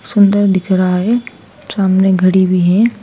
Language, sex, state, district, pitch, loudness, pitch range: Hindi, female, Madhya Pradesh, Dhar, 190 Hz, -12 LUFS, 185-205 Hz